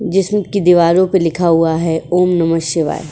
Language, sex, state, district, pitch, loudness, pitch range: Hindi, female, Uttar Pradesh, Jyotiba Phule Nagar, 170 Hz, -14 LUFS, 165-185 Hz